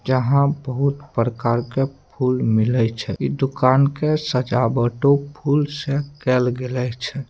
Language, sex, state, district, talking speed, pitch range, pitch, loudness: Maithili, male, Bihar, Samastipur, 130 wpm, 120-140 Hz, 130 Hz, -20 LUFS